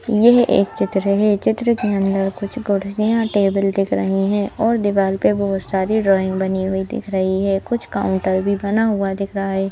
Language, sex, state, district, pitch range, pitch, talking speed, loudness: Hindi, female, Madhya Pradesh, Bhopal, 195-210 Hz, 200 Hz, 195 wpm, -18 LUFS